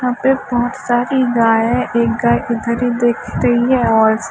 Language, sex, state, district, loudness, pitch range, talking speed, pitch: Hindi, female, Punjab, Fazilka, -15 LUFS, 235-245 Hz, 180 wpm, 240 Hz